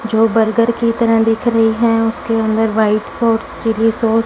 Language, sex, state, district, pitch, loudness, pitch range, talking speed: Hindi, female, Punjab, Fazilka, 225 Hz, -15 LUFS, 225-230 Hz, 195 wpm